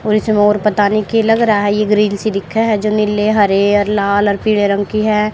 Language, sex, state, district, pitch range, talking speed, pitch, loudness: Hindi, female, Haryana, Jhajjar, 205-215 Hz, 270 wpm, 210 Hz, -14 LUFS